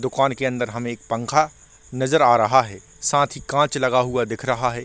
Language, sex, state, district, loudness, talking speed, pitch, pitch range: Hindi, male, Chhattisgarh, Korba, -20 LUFS, 225 wpm, 130 Hz, 120-140 Hz